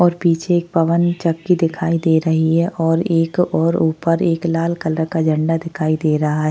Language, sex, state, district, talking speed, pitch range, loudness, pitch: Hindi, female, Maharashtra, Chandrapur, 200 wpm, 160-170 Hz, -17 LUFS, 165 Hz